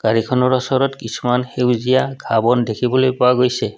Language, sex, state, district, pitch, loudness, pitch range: Assamese, male, Assam, Kamrup Metropolitan, 125 Hz, -17 LUFS, 120-130 Hz